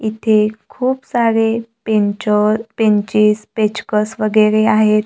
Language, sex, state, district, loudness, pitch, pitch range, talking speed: Marathi, female, Maharashtra, Gondia, -15 LUFS, 215 Hz, 210-225 Hz, 95 wpm